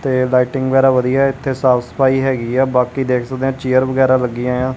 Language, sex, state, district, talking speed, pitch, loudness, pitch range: Punjabi, male, Punjab, Kapurthala, 215 wpm, 130 Hz, -15 LUFS, 125-135 Hz